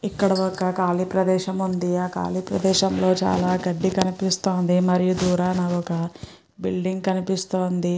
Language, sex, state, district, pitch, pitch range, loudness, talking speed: Telugu, female, Andhra Pradesh, Guntur, 185 Hz, 180-190 Hz, -22 LUFS, 130 wpm